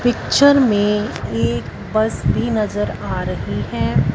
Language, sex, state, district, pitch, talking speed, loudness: Hindi, female, Punjab, Fazilka, 210 Hz, 130 wpm, -18 LUFS